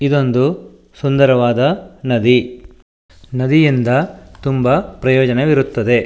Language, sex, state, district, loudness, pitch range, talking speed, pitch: Kannada, male, Karnataka, Shimoga, -15 LUFS, 125-140 Hz, 60 wpm, 130 Hz